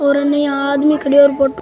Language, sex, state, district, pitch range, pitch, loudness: Rajasthani, male, Rajasthan, Churu, 280-285 Hz, 285 Hz, -13 LUFS